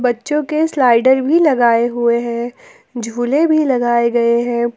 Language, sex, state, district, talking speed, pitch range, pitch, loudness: Hindi, female, Jharkhand, Ranchi, 140 wpm, 235-280 Hz, 240 Hz, -15 LUFS